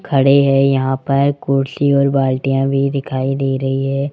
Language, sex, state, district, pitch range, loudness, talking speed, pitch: Hindi, male, Rajasthan, Jaipur, 135-140 Hz, -15 LUFS, 175 wpm, 135 Hz